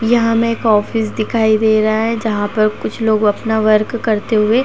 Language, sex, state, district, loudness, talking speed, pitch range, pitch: Hindi, female, Uttar Pradesh, Jalaun, -15 LUFS, 205 wpm, 215-230 Hz, 220 Hz